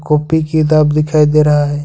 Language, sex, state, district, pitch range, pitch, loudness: Hindi, male, Jharkhand, Ranchi, 150-155 Hz, 150 Hz, -12 LUFS